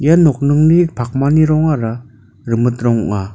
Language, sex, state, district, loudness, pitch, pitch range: Garo, male, Meghalaya, North Garo Hills, -14 LUFS, 125 Hz, 115-155 Hz